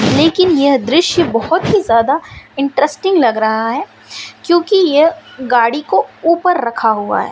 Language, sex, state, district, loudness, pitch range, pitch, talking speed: Hindi, female, Madhya Pradesh, Umaria, -13 LUFS, 240-345 Hz, 300 Hz, 145 wpm